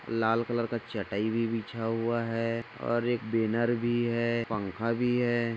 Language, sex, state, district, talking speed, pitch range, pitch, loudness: Hindi, male, Maharashtra, Dhule, 170 wpm, 115-120 Hz, 115 Hz, -30 LUFS